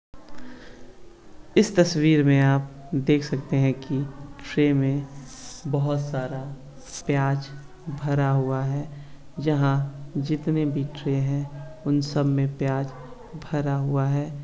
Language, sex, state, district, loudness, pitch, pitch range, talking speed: Hindi, male, Maharashtra, Solapur, -24 LUFS, 140 Hz, 135-145 Hz, 115 wpm